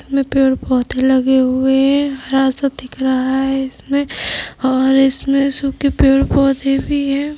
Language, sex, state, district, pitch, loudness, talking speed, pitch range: Hindi, female, Uttar Pradesh, Budaun, 270 Hz, -15 LUFS, 160 wpm, 265-275 Hz